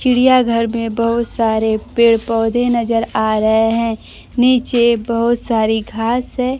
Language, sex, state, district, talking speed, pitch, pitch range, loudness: Hindi, female, Bihar, Kaimur, 145 wpm, 230 Hz, 225-240 Hz, -15 LUFS